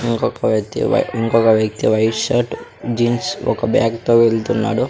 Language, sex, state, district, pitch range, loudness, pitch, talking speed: Telugu, male, Andhra Pradesh, Sri Satya Sai, 110-115 Hz, -17 LUFS, 115 Hz, 145 wpm